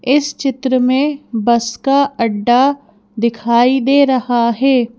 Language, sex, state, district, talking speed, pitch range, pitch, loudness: Hindi, female, Madhya Pradesh, Bhopal, 120 wpm, 235-275 Hz, 255 Hz, -14 LUFS